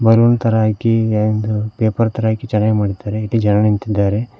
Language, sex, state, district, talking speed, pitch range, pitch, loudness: Kannada, male, Karnataka, Koppal, 165 wpm, 105-115 Hz, 110 Hz, -16 LUFS